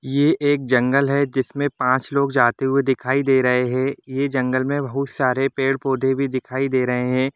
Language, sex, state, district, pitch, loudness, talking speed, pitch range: Hindi, male, Jharkhand, Sahebganj, 135 Hz, -20 LUFS, 210 wpm, 130-140 Hz